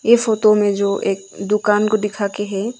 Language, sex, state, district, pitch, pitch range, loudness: Hindi, female, Arunachal Pradesh, Longding, 210 Hz, 200-215 Hz, -18 LUFS